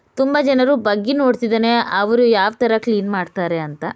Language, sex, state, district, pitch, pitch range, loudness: Kannada, female, Karnataka, Bellary, 230 Hz, 200-255 Hz, -17 LUFS